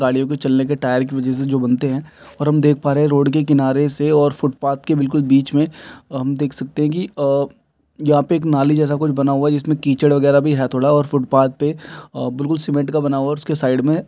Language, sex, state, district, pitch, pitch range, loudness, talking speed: Maithili, male, Bihar, Samastipur, 145 Hz, 135-150 Hz, -17 LUFS, 255 wpm